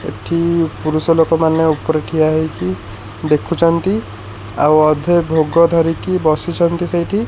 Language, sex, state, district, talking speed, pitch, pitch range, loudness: Odia, male, Odisha, Khordha, 115 wpm, 160 Hz, 150-170 Hz, -15 LUFS